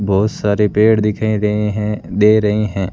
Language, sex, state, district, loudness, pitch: Hindi, male, Rajasthan, Bikaner, -15 LUFS, 105 Hz